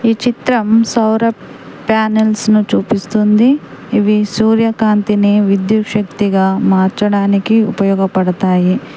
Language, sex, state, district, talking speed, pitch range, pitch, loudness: Telugu, female, Telangana, Mahabubabad, 80 wpm, 200-220 Hz, 210 Hz, -13 LUFS